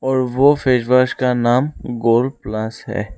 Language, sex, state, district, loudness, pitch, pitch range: Hindi, male, Arunachal Pradesh, Lower Dibang Valley, -17 LUFS, 125 Hz, 115-130 Hz